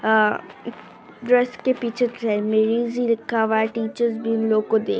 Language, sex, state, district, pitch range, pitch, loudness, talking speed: Hindi, male, Maharashtra, Dhule, 220-240 Hz, 225 Hz, -21 LUFS, 145 wpm